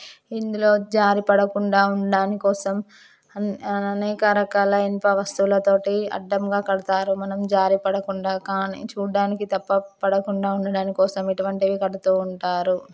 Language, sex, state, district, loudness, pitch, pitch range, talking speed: Telugu, female, Telangana, Karimnagar, -22 LUFS, 195 Hz, 195-200 Hz, 110 wpm